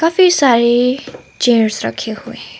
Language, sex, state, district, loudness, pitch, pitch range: Hindi, female, Arunachal Pradesh, Papum Pare, -14 LUFS, 245 Hz, 235-275 Hz